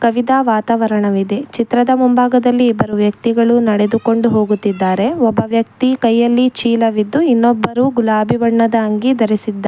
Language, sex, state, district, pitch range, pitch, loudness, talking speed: Kannada, female, Karnataka, Bangalore, 215-245 Hz, 230 Hz, -14 LUFS, 105 wpm